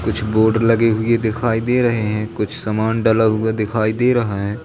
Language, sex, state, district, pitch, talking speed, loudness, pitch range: Hindi, male, Madhya Pradesh, Katni, 110 Hz, 205 wpm, -17 LUFS, 110-115 Hz